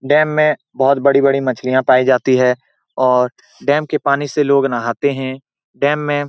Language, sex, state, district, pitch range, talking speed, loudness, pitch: Hindi, male, Bihar, Saran, 130-145 Hz, 190 wpm, -15 LUFS, 135 Hz